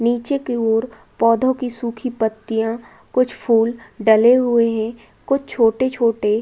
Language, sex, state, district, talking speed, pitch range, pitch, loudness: Hindi, female, Uttar Pradesh, Budaun, 140 wpm, 225-250 Hz, 230 Hz, -18 LUFS